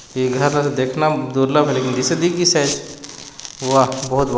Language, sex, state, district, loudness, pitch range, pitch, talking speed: Hindi, male, Chhattisgarh, Jashpur, -17 LUFS, 130-145 Hz, 140 Hz, 110 wpm